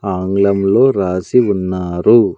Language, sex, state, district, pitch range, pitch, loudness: Telugu, male, Andhra Pradesh, Sri Satya Sai, 90-100 Hz, 95 Hz, -14 LUFS